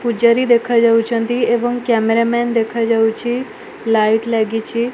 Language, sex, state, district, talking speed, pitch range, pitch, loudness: Odia, female, Odisha, Malkangiri, 110 wpm, 225-240 Hz, 230 Hz, -16 LUFS